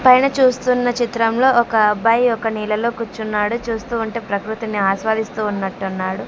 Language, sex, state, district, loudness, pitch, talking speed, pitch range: Telugu, female, Andhra Pradesh, Sri Satya Sai, -18 LUFS, 225 Hz, 125 wpm, 210-240 Hz